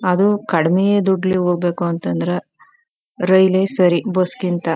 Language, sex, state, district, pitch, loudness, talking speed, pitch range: Kannada, female, Karnataka, Chamarajanagar, 185 Hz, -17 LUFS, 115 wpm, 170-195 Hz